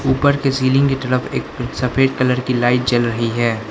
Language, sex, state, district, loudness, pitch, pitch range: Hindi, male, Arunachal Pradesh, Lower Dibang Valley, -17 LUFS, 125 Hz, 120-135 Hz